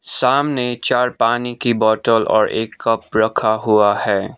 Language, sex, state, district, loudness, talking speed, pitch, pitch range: Hindi, male, Sikkim, Gangtok, -17 LUFS, 150 wpm, 110 Hz, 110-120 Hz